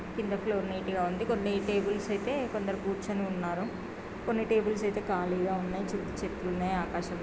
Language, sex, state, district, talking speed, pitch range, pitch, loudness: Telugu, female, Andhra Pradesh, Srikakulam, 150 wpm, 185-210 Hz, 200 Hz, -32 LUFS